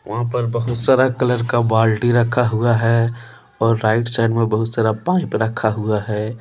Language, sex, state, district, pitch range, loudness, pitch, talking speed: Hindi, male, Jharkhand, Deoghar, 110-120 Hz, -18 LUFS, 115 Hz, 185 wpm